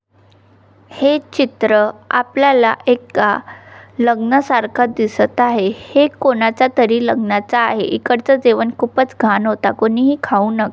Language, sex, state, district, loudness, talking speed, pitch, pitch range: Marathi, female, Maharashtra, Solapur, -15 LUFS, 130 wpm, 235 Hz, 215-260 Hz